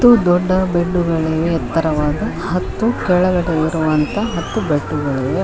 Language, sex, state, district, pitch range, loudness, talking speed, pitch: Kannada, female, Karnataka, Koppal, 155-185 Hz, -17 LUFS, 100 wpm, 170 Hz